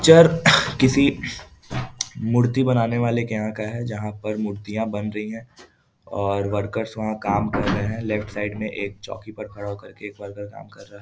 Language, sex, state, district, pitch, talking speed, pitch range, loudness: Hindi, male, Bihar, East Champaran, 105 Hz, 200 wpm, 100-115 Hz, -22 LUFS